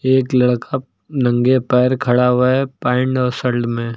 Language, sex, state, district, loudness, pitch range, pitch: Hindi, male, Uttar Pradesh, Lucknow, -16 LUFS, 125-130 Hz, 125 Hz